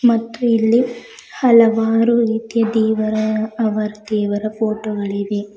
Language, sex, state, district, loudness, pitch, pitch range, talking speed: Kannada, female, Karnataka, Bidar, -17 LUFS, 220 Hz, 215-230 Hz, 95 wpm